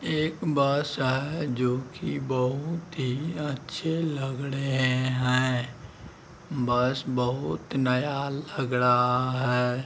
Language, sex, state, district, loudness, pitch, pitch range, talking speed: Hindi, male, Bihar, Araria, -27 LUFS, 130 Hz, 125-145 Hz, 85 wpm